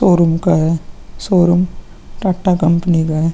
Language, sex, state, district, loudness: Hindi, male, Uttar Pradesh, Muzaffarnagar, -15 LUFS